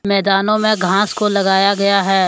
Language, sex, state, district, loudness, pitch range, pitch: Hindi, male, Jharkhand, Deoghar, -14 LUFS, 195-210 Hz, 200 Hz